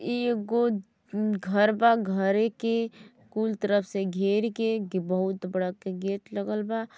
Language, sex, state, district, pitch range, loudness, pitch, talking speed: Bhojpuri, female, Uttar Pradesh, Gorakhpur, 195-225 Hz, -27 LUFS, 210 Hz, 155 wpm